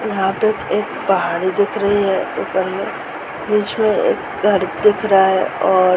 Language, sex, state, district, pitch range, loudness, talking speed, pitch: Hindi, female, Uttar Pradesh, Muzaffarnagar, 190-215 Hz, -17 LUFS, 180 wpm, 200 Hz